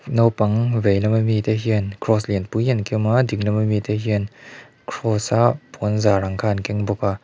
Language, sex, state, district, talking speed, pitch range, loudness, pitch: Mizo, male, Mizoram, Aizawl, 205 wpm, 105-110 Hz, -20 LUFS, 105 Hz